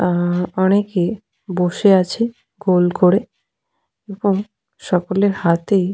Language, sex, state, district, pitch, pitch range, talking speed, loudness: Bengali, female, Jharkhand, Sahebganj, 190 Hz, 180-205 Hz, 100 wpm, -18 LUFS